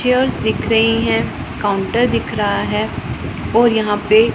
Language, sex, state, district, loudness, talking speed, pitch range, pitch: Hindi, female, Punjab, Pathankot, -17 LUFS, 150 wpm, 210-240 Hz, 225 Hz